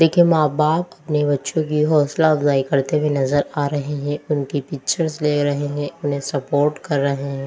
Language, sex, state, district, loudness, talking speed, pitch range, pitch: Hindi, female, Delhi, New Delhi, -20 LUFS, 185 wpm, 140-150 Hz, 145 Hz